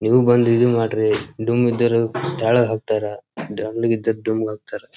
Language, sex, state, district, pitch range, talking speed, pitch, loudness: Kannada, male, Karnataka, Dharwad, 110-120 Hz, 155 wpm, 115 Hz, -19 LUFS